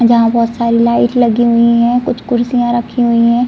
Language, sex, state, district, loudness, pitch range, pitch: Hindi, female, Bihar, Saran, -12 LUFS, 235-240 Hz, 235 Hz